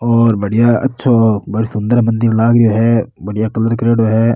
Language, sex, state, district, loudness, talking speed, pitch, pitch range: Rajasthani, male, Rajasthan, Nagaur, -13 LUFS, 180 wpm, 115 Hz, 110-115 Hz